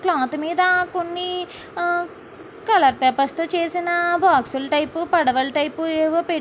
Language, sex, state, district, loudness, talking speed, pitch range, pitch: Telugu, female, Andhra Pradesh, Guntur, -20 LUFS, 140 wpm, 305-360 Hz, 345 Hz